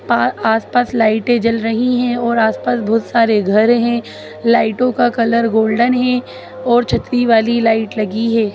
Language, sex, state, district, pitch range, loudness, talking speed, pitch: Hindi, female, Bihar, Jahanabad, 220-240 Hz, -15 LUFS, 160 wpm, 230 Hz